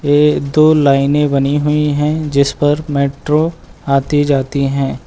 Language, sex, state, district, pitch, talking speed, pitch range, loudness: Hindi, male, Uttar Pradesh, Lucknow, 145 Hz, 140 wpm, 140-150 Hz, -14 LUFS